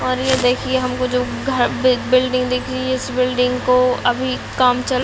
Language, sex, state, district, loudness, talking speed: Hindi, female, Chhattisgarh, Raigarh, -18 LUFS, 200 wpm